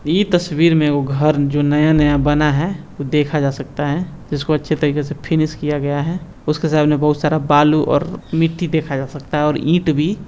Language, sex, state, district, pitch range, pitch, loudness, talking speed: Hindi, male, Bihar, Muzaffarpur, 145-160 Hz, 150 Hz, -17 LUFS, 210 wpm